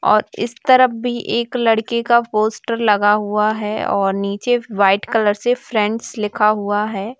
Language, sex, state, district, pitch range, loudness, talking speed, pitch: Hindi, female, Chhattisgarh, Sukma, 210-235 Hz, -17 LUFS, 165 wpm, 215 Hz